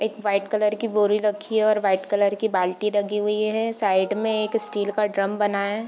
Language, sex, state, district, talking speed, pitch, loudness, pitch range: Hindi, female, Bihar, Gopalganj, 235 wpm, 210 Hz, -23 LUFS, 200-215 Hz